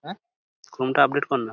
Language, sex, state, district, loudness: Bengali, male, West Bengal, Paschim Medinipur, -22 LUFS